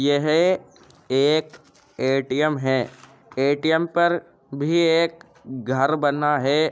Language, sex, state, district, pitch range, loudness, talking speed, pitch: Hindi, male, Uttar Pradesh, Jyotiba Phule Nagar, 135-160 Hz, -21 LUFS, 100 wpm, 145 Hz